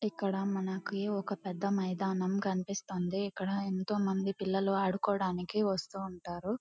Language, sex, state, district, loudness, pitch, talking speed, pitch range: Telugu, female, Andhra Pradesh, Guntur, -34 LUFS, 195 Hz, 110 wpm, 190-200 Hz